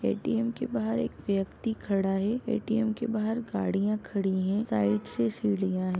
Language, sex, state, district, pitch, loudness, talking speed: Hindi, female, Uttar Pradesh, Budaun, 195 Hz, -29 LUFS, 170 wpm